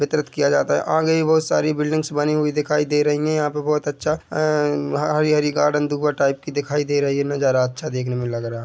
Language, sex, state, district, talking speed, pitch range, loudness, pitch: Hindi, male, Chhattisgarh, Bilaspur, 265 wpm, 145-150 Hz, -20 LUFS, 150 Hz